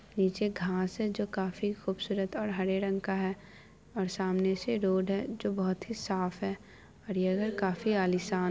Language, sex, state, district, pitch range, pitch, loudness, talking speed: Hindi, female, Bihar, Araria, 190-205 Hz, 195 Hz, -32 LUFS, 175 wpm